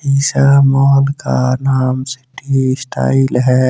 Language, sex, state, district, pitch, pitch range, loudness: Hindi, male, Jharkhand, Deoghar, 130 Hz, 130-140 Hz, -13 LUFS